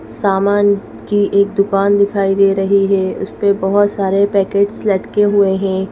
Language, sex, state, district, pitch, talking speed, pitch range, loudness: Hindi, female, Madhya Pradesh, Bhopal, 200 Hz, 160 wpm, 195-200 Hz, -14 LUFS